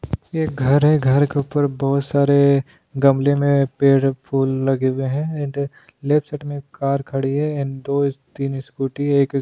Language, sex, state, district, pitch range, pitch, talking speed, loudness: Hindi, male, Goa, North and South Goa, 135-145 Hz, 140 Hz, 180 wpm, -19 LUFS